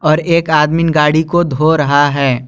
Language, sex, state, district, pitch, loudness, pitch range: Hindi, male, Jharkhand, Garhwa, 155 Hz, -12 LUFS, 145-165 Hz